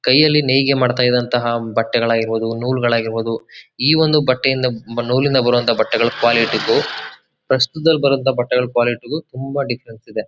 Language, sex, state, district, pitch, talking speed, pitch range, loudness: Kannada, male, Karnataka, Chamarajanagar, 125 Hz, 125 wpm, 115-135 Hz, -17 LUFS